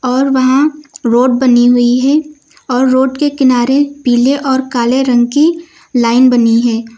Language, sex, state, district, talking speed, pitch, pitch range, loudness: Hindi, female, Uttar Pradesh, Lucknow, 155 wpm, 260 Hz, 245-285 Hz, -11 LUFS